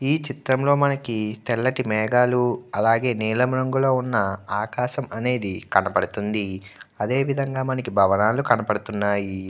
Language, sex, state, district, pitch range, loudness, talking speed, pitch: Telugu, male, Andhra Pradesh, Guntur, 105-130 Hz, -22 LUFS, 100 wpm, 120 Hz